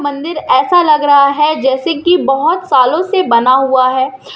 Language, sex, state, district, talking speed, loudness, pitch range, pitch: Hindi, female, Madhya Pradesh, Umaria, 180 wpm, -11 LUFS, 265-335 Hz, 285 Hz